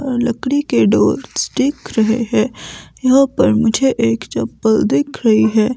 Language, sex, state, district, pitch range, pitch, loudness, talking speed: Hindi, female, Himachal Pradesh, Shimla, 220-260 Hz, 230 Hz, -15 LUFS, 145 wpm